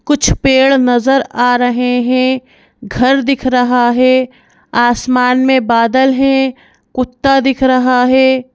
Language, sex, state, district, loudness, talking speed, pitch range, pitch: Hindi, female, Madhya Pradesh, Bhopal, -12 LUFS, 125 wpm, 250-265 Hz, 255 Hz